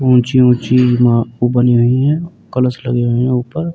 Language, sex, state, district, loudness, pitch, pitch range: Hindi, male, Uttar Pradesh, Jyotiba Phule Nagar, -13 LUFS, 125 Hz, 120-130 Hz